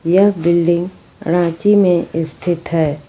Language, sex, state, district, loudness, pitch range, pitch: Hindi, female, Jharkhand, Ranchi, -15 LUFS, 165-180 Hz, 170 Hz